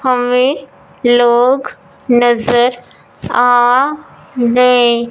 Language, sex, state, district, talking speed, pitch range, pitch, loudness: Hindi, female, Punjab, Fazilka, 60 wpm, 240-255 Hz, 245 Hz, -12 LUFS